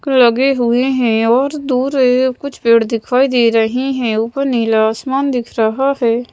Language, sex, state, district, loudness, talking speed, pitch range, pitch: Hindi, female, Madhya Pradesh, Bhopal, -14 LUFS, 170 wpm, 230-270 Hz, 250 Hz